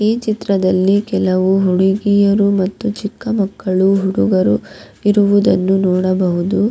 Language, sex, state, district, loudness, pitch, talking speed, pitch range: Kannada, female, Karnataka, Raichur, -15 LUFS, 195 Hz, 90 wpm, 185-205 Hz